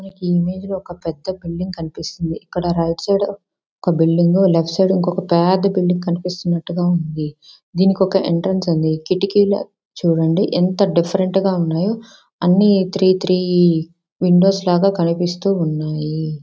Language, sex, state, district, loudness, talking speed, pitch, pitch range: Telugu, female, Andhra Pradesh, Visakhapatnam, -18 LUFS, 130 wpm, 180 Hz, 170-190 Hz